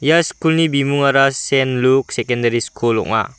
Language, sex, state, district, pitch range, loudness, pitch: Garo, male, Meghalaya, West Garo Hills, 120-140 Hz, -16 LUFS, 135 Hz